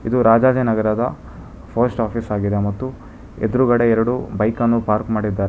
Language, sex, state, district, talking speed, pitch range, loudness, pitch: Kannada, male, Karnataka, Bangalore, 130 wpm, 110-120 Hz, -18 LUFS, 115 Hz